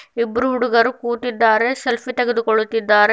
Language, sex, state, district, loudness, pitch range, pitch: Kannada, female, Karnataka, Bidar, -18 LUFS, 225-245 Hz, 235 Hz